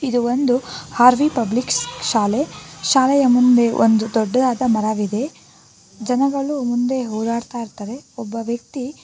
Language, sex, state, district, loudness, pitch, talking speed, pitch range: Kannada, female, Karnataka, Bangalore, -18 LUFS, 245 Hz, 105 wpm, 230-260 Hz